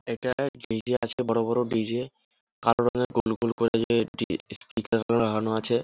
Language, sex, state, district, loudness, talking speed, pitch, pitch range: Bengali, male, West Bengal, Jhargram, -27 LUFS, 155 wpm, 115 Hz, 115-120 Hz